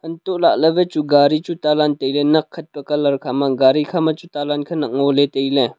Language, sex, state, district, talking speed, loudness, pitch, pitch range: Wancho, male, Arunachal Pradesh, Longding, 195 wpm, -17 LUFS, 150 Hz, 140-160 Hz